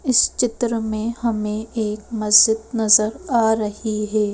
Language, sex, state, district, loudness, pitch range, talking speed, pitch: Hindi, female, Madhya Pradesh, Bhopal, -19 LUFS, 215-230 Hz, 140 wpm, 220 Hz